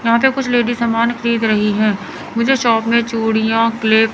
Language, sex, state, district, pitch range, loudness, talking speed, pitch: Hindi, female, Chandigarh, Chandigarh, 220-235 Hz, -15 LUFS, 190 wpm, 230 Hz